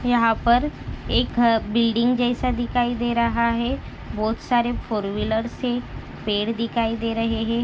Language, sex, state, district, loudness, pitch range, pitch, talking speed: Hindi, female, Maharashtra, Nagpur, -22 LUFS, 225-240 Hz, 235 Hz, 140 wpm